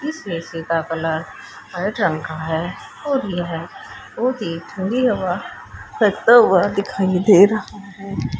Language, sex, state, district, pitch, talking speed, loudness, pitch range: Hindi, female, Haryana, Charkhi Dadri, 190 Hz, 145 wpm, -19 LUFS, 165-215 Hz